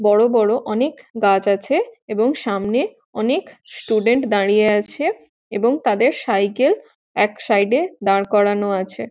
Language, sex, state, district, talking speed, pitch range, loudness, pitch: Bengali, female, West Bengal, Jhargram, 130 wpm, 200-255 Hz, -18 LUFS, 215 Hz